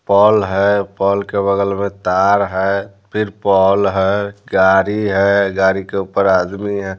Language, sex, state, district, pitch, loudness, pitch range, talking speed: Hindi, male, Bihar, Patna, 100 Hz, -15 LUFS, 95-100 Hz, 155 wpm